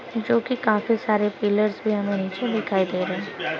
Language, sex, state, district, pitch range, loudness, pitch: Hindi, female, Uttar Pradesh, Jalaun, 190-230 Hz, -23 LUFS, 210 Hz